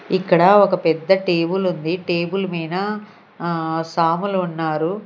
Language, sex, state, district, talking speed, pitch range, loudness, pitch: Telugu, female, Andhra Pradesh, Sri Satya Sai, 120 wpm, 165-190 Hz, -19 LUFS, 175 Hz